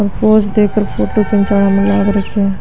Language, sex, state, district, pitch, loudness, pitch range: Marwari, female, Rajasthan, Nagaur, 205 Hz, -13 LUFS, 200-210 Hz